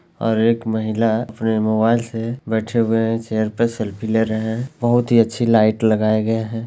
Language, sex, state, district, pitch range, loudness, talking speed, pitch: Hindi, male, Bihar, Lakhisarai, 110-115 Hz, -19 LUFS, 190 wpm, 115 Hz